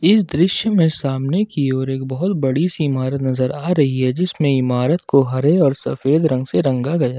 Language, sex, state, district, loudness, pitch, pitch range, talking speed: Hindi, male, Jharkhand, Ranchi, -18 LUFS, 140 Hz, 130-170 Hz, 210 wpm